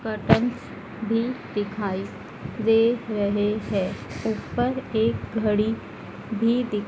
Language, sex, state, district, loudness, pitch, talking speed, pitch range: Hindi, female, Madhya Pradesh, Dhar, -25 LUFS, 220 Hz, 95 wpm, 205-230 Hz